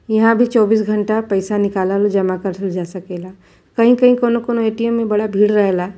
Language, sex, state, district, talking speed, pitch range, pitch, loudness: Bhojpuri, female, Uttar Pradesh, Varanasi, 180 wpm, 190-230 Hz, 210 Hz, -16 LUFS